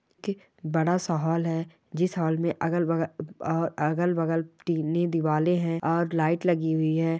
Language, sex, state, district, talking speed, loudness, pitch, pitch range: Hindi, female, Rajasthan, Churu, 175 wpm, -27 LUFS, 165 Hz, 160-170 Hz